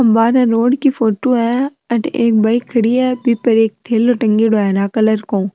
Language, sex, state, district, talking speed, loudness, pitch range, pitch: Marwari, female, Rajasthan, Nagaur, 205 wpm, -14 LUFS, 220-245 Hz, 230 Hz